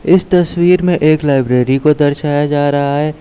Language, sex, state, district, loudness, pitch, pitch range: Hindi, male, Uttar Pradesh, Lucknow, -12 LUFS, 150 Hz, 145-175 Hz